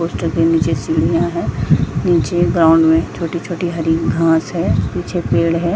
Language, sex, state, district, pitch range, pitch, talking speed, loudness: Hindi, female, Jharkhand, Jamtara, 155-170 Hz, 165 Hz, 175 wpm, -16 LUFS